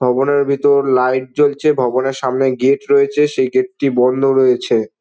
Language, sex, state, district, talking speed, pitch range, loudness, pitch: Bengali, male, West Bengal, Dakshin Dinajpur, 155 wpm, 130-140 Hz, -15 LUFS, 135 Hz